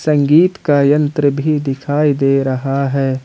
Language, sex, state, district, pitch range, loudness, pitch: Hindi, male, Jharkhand, Ranchi, 135-150 Hz, -14 LUFS, 145 Hz